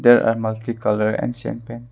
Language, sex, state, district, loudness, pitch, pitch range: English, male, Arunachal Pradesh, Longding, -21 LUFS, 115 Hz, 110-120 Hz